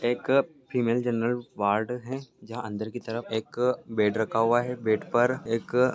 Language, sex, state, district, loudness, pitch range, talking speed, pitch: Hindi, male, Chhattisgarh, Bilaspur, -27 LUFS, 110-125 Hz, 170 wpm, 120 Hz